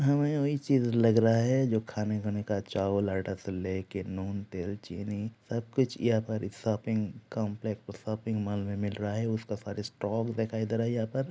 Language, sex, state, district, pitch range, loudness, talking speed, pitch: Hindi, male, Jharkhand, Jamtara, 100-115 Hz, -31 LUFS, 195 wpm, 110 Hz